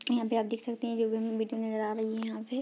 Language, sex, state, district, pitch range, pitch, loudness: Hindi, female, Uttar Pradesh, Deoria, 220-235 Hz, 225 Hz, -32 LUFS